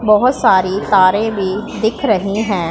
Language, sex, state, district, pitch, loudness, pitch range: Hindi, female, Punjab, Pathankot, 210 Hz, -14 LUFS, 190-220 Hz